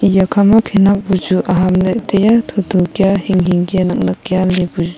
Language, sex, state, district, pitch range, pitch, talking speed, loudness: Wancho, female, Arunachal Pradesh, Longding, 180-200 Hz, 190 Hz, 205 wpm, -13 LUFS